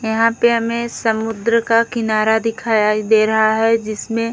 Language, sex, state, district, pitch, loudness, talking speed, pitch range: Hindi, female, Odisha, Khordha, 225 Hz, -16 LUFS, 165 wpm, 220-230 Hz